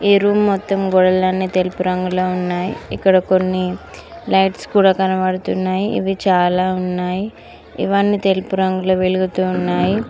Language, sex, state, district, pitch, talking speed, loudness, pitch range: Telugu, female, Telangana, Mahabubabad, 185 Hz, 120 wpm, -17 LUFS, 185-195 Hz